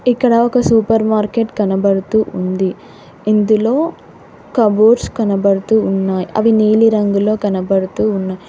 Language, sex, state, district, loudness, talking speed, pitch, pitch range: Telugu, female, Telangana, Hyderabad, -14 LUFS, 100 wpm, 215 Hz, 195-225 Hz